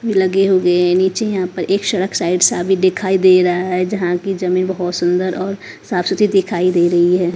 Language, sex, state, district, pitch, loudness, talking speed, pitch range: Hindi, female, Punjab, Kapurthala, 185 Hz, -15 LUFS, 230 wpm, 180-190 Hz